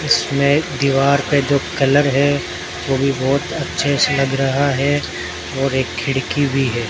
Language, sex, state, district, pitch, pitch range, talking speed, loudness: Hindi, male, Rajasthan, Bikaner, 140 Hz, 135-140 Hz, 165 wpm, -17 LUFS